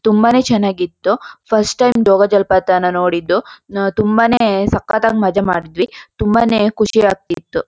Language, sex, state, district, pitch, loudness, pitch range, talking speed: Kannada, female, Karnataka, Shimoga, 210 Hz, -14 LUFS, 190-225 Hz, 100 wpm